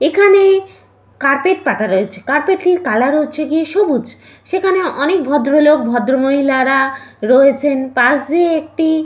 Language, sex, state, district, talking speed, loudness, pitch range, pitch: Bengali, female, West Bengal, Purulia, 125 wpm, -14 LUFS, 265-345 Hz, 290 Hz